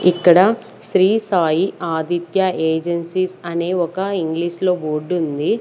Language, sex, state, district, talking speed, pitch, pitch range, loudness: Telugu, female, Andhra Pradesh, Sri Satya Sai, 115 wpm, 175 Hz, 165-185 Hz, -18 LUFS